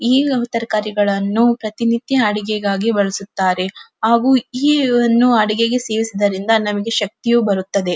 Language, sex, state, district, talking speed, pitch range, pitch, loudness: Kannada, female, Karnataka, Dharwad, 90 wpm, 205-235 Hz, 220 Hz, -16 LUFS